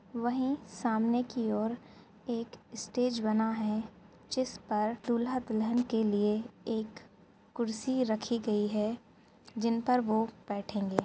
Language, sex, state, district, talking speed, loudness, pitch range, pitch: Hindi, female, Uttar Pradesh, Gorakhpur, 125 wpm, -32 LUFS, 215-240 Hz, 225 Hz